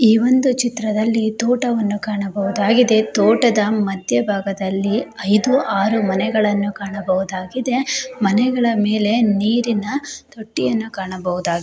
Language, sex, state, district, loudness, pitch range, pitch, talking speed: Kannada, female, Karnataka, Shimoga, -18 LUFS, 200-235 Hz, 215 Hz, 85 wpm